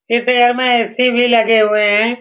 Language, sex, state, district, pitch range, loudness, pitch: Hindi, male, Bihar, Saran, 225-245 Hz, -13 LUFS, 235 Hz